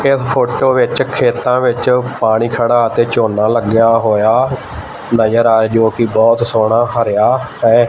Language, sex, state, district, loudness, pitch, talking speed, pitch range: Punjabi, male, Punjab, Fazilka, -13 LUFS, 115 Hz, 145 wpm, 110-120 Hz